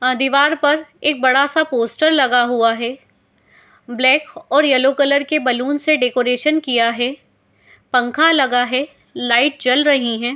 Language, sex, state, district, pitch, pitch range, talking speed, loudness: Hindi, female, Uttar Pradesh, Etah, 265 Hz, 245-290 Hz, 150 wpm, -16 LUFS